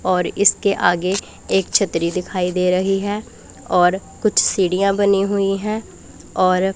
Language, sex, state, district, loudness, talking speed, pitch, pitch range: Hindi, female, Punjab, Pathankot, -18 LUFS, 140 wpm, 195 Hz, 180-200 Hz